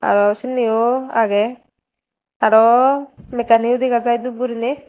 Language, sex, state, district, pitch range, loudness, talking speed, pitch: Chakma, female, Tripura, Dhalai, 225-255 Hz, -17 LUFS, 110 wpm, 240 Hz